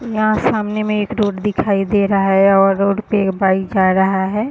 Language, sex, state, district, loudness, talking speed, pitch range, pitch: Hindi, female, Bihar, Madhepura, -16 LUFS, 225 wpm, 195-210 Hz, 200 Hz